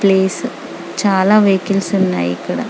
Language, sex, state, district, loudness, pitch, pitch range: Telugu, female, Telangana, Karimnagar, -15 LUFS, 195 Hz, 190-195 Hz